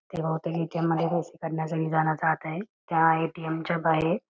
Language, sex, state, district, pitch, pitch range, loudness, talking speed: Marathi, female, Karnataka, Belgaum, 165 Hz, 160-170 Hz, -27 LUFS, 225 wpm